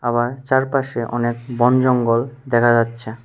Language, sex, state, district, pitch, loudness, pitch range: Bengali, male, Tripura, West Tripura, 120 Hz, -18 LUFS, 120-130 Hz